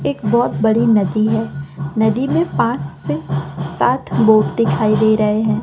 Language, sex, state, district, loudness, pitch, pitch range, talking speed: Hindi, female, Madhya Pradesh, Umaria, -16 LUFS, 210 Hz, 145-220 Hz, 160 wpm